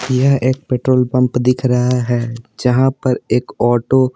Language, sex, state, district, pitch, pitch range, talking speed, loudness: Hindi, male, Bihar, Patna, 125 Hz, 125-130 Hz, 175 wpm, -16 LUFS